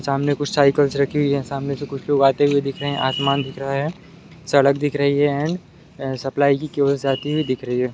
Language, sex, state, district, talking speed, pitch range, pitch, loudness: Hindi, male, Bihar, Sitamarhi, 235 wpm, 135-145 Hz, 140 Hz, -20 LUFS